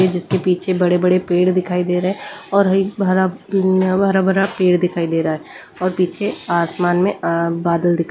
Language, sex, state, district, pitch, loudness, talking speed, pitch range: Hindi, female, Delhi, New Delhi, 185 Hz, -17 LUFS, 170 wpm, 175-190 Hz